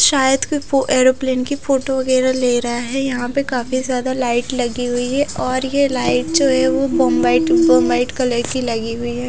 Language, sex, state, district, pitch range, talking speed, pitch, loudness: Hindi, female, Odisha, Khordha, 240-270 Hz, 215 wpm, 255 Hz, -17 LUFS